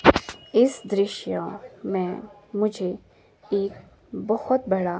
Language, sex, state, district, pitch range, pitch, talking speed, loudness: Hindi, female, Himachal Pradesh, Shimla, 190-215 Hz, 205 Hz, 85 wpm, -25 LUFS